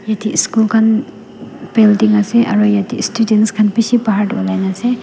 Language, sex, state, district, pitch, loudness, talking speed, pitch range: Nagamese, female, Nagaland, Dimapur, 215 Hz, -13 LUFS, 180 wpm, 210-230 Hz